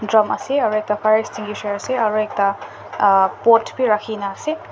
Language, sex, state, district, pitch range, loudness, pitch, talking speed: Nagamese, male, Nagaland, Dimapur, 205-225 Hz, -19 LUFS, 215 Hz, 175 wpm